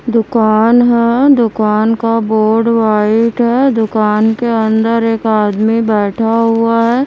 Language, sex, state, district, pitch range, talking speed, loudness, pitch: Hindi, female, Haryana, Charkhi Dadri, 220-230 Hz, 125 wpm, -12 LUFS, 225 Hz